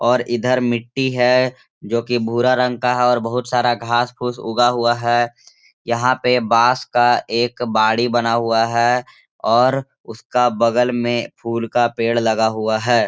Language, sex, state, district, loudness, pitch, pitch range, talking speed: Hindi, male, Bihar, Gaya, -18 LUFS, 120 Hz, 115-125 Hz, 155 wpm